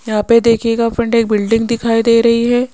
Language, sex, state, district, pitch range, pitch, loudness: Hindi, female, Rajasthan, Jaipur, 225-235 Hz, 230 Hz, -13 LUFS